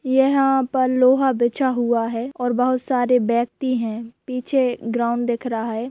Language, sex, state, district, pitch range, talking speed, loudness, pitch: Hindi, female, Bihar, Jahanabad, 235-260 Hz, 160 wpm, -20 LUFS, 250 Hz